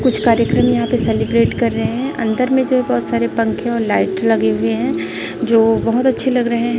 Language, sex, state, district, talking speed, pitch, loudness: Hindi, female, Chhattisgarh, Raipur, 220 wpm, 230 Hz, -16 LUFS